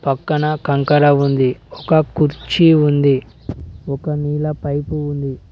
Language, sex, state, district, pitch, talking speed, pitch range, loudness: Telugu, male, Telangana, Mahabubabad, 145 Hz, 110 wpm, 140-150 Hz, -16 LUFS